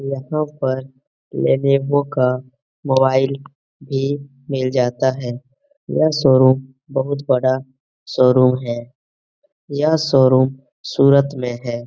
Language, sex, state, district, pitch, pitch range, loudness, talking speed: Hindi, male, Bihar, Jamui, 135 Hz, 130-140 Hz, -18 LUFS, 100 wpm